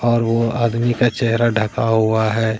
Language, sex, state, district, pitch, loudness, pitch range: Hindi, male, Bihar, Katihar, 115 Hz, -17 LUFS, 110-120 Hz